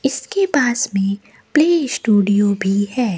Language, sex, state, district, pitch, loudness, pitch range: Hindi, female, Rajasthan, Bikaner, 225 Hz, -17 LUFS, 200-275 Hz